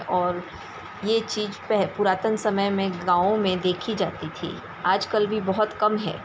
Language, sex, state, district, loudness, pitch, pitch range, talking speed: Hindi, female, Bihar, Darbhanga, -24 LUFS, 205 Hz, 185-215 Hz, 165 wpm